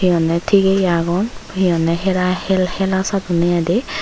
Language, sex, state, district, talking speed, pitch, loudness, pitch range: Chakma, female, Tripura, Unakoti, 165 wpm, 185 Hz, -17 LUFS, 170-190 Hz